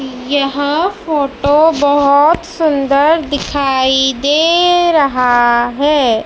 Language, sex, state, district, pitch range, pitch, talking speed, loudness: Hindi, female, Madhya Pradesh, Dhar, 265-310 Hz, 285 Hz, 75 wpm, -12 LUFS